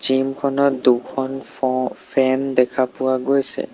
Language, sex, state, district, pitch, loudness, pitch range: Assamese, male, Assam, Sonitpur, 130 Hz, -20 LUFS, 130-135 Hz